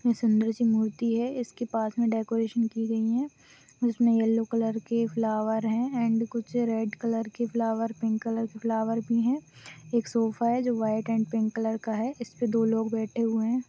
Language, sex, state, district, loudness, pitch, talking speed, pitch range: Hindi, female, Chhattisgarh, Balrampur, -28 LUFS, 230 Hz, 200 wpm, 225-235 Hz